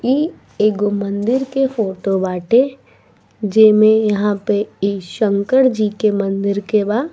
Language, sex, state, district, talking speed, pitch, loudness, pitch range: Bhojpuri, female, Bihar, East Champaran, 135 wpm, 210 Hz, -16 LUFS, 200-235 Hz